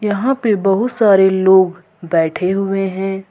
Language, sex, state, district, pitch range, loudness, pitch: Hindi, female, Jharkhand, Ranchi, 190-205 Hz, -15 LUFS, 195 Hz